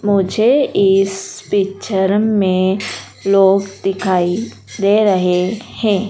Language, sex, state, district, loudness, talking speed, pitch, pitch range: Hindi, female, Madhya Pradesh, Dhar, -15 LUFS, 90 wpm, 195 Hz, 190-210 Hz